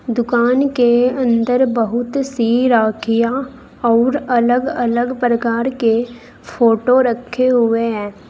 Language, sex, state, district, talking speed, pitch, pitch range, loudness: Hindi, female, Uttar Pradesh, Saharanpur, 110 wpm, 240 Hz, 230-255 Hz, -16 LUFS